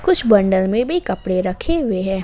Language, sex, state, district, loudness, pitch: Hindi, female, Jharkhand, Ranchi, -18 LUFS, 200 Hz